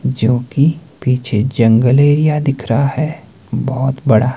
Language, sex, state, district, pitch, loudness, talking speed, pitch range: Hindi, male, Himachal Pradesh, Shimla, 130 Hz, -14 LUFS, 135 wpm, 115-145 Hz